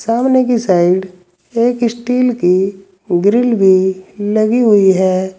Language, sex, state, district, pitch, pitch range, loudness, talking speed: Hindi, male, Uttar Pradesh, Saharanpur, 200 Hz, 185-235 Hz, -13 LUFS, 120 wpm